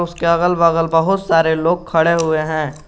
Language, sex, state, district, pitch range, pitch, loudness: Hindi, male, Jharkhand, Garhwa, 160-170 Hz, 165 Hz, -15 LUFS